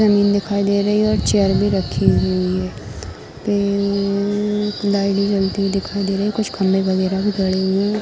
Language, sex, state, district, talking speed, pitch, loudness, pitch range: Hindi, female, Bihar, Darbhanga, 215 wpm, 200 Hz, -18 LUFS, 190-205 Hz